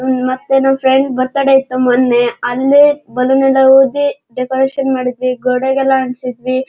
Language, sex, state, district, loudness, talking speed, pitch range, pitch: Kannada, male, Karnataka, Shimoga, -13 LUFS, 125 wpm, 255-270 Hz, 260 Hz